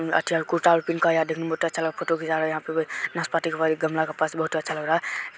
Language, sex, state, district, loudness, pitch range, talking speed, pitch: Hindi, male, Bihar, Darbhanga, -25 LUFS, 160-165 Hz, 335 wpm, 160 Hz